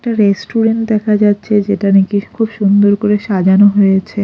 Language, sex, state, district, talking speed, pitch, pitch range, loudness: Bengali, female, Odisha, Khordha, 155 wpm, 205 Hz, 200-215 Hz, -12 LUFS